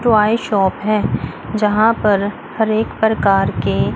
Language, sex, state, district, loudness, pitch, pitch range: Hindi, female, Chandigarh, Chandigarh, -16 LUFS, 215 Hz, 205-220 Hz